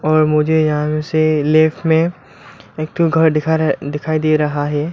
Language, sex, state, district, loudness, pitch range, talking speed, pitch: Hindi, male, Arunachal Pradesh, Lower Dibang Valley, -16 LUFS, 150-160 Hz, 180 wpm, 155 Hz